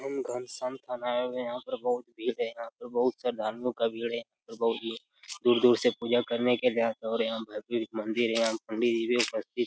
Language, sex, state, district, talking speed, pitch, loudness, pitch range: Hindi, male, Bihar, Jamui, 235 wpm, 120 Hz, -30 LUFS, 115-125 Hz